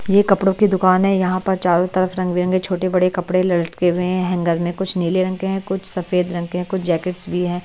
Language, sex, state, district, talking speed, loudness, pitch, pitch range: Hindi, female, Bihar, Patna, 245 wpm, -19 LUFS, 180 Hz, 180-190 Hz